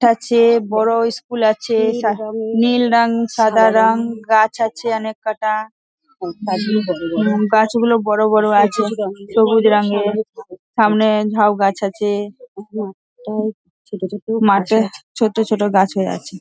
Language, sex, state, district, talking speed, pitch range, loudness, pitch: Bengali, female, West Bengal, Dakshin Dinajpur, 115 wpm, 210-230 Hz, -16 LUFS, 220 Hz